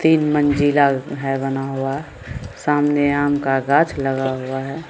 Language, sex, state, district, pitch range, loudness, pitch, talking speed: Maithili, female, Bihar, Samastipur, 135-145 Hz, -19 LUFS, 135 Hz, 145 wpm